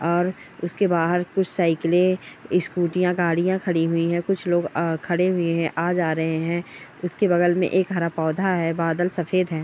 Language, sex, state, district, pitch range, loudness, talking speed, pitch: Hindi, female, Chhattisgarh, Raigarh, 165-180 Hz, -22 LUFS, 185 wpm, 175 Hz